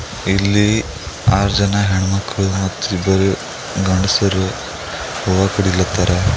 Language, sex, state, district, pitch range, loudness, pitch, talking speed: Kannada, male, Karnataka, Bidar, 95-100 Hz, -17 LUFS, 95 Hz, 85 wpm